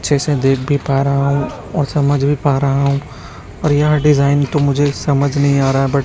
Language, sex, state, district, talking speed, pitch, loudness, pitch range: Hindi, male, Chhattisgarh, Raipur, 230 wpm, 140 Hz, -15 LUFS, 140-145 Hz